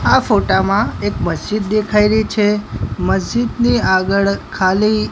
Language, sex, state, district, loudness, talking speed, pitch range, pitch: Gujarati, male, Gujarat, Gandhinagar, -16 LUFS, 130 wpm, 185-215 Hz, 210 Hz